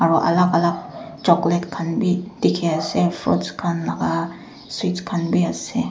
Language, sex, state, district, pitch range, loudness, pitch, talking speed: Nagamese, female, Nagaland, Dimapur, 170-180 Hz, -21 LUFS, 170 Hz, 150 wpm